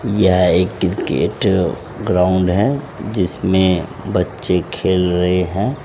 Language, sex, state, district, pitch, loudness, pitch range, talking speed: Hindi, male, Uttar Pradesh, Saharanpur, 95 Hz, -17 LUFS, 90-105 Hz, 105 wpm